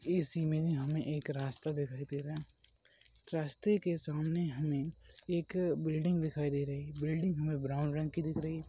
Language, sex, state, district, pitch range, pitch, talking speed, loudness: Hindi, male, Uttar Pradesh, Ghazipur, 145-165 Hz, 155 Hz, 185 wpm, -36 LUFS